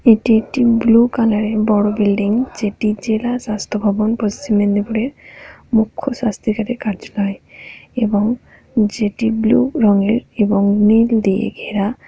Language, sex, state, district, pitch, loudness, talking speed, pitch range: Bengali, female, West Bengal, Paschim Medinipur, 220 Hz, -16 LUFS, 130 wpm, 210-230 Hz